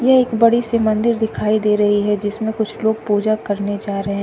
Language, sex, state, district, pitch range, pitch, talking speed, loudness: Hindi, female, Uttar Pradesh, Shamli, 205-225 Hz, 215 Hz, 225 wpm, -17 LUFS